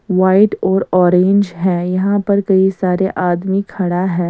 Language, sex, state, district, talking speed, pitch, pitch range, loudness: Hindi, female, Bihar, West Champaran, 155 wpm, 185 Hz, 180-195 Hz, -14 LUFS